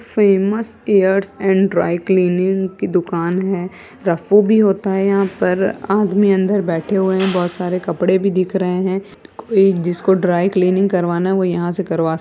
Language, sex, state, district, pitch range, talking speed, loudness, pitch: Hindi, female, Uttar Pradesh, Jyotiba Phule Nagar, 180-195 Hz, 170 wpm, -16 LUFS, 190 Hz